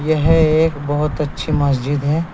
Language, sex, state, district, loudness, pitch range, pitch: Hindi, male, Uttar Pradesh, Saharanpur, -17 LUFS, 145-160 Hz, 150 Hz